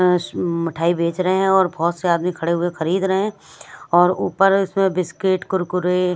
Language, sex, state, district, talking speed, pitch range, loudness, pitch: Hindi, female, Punjab, Kapurthala, 185 wpm, 170-190 Hz, -19 LUFS, 180 Hz